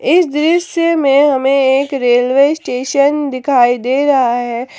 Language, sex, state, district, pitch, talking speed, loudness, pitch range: Hindi, female, Jharkhand, Palamu, 275 Hz, 140 wpm, -13 LUFS, 255-295 Hz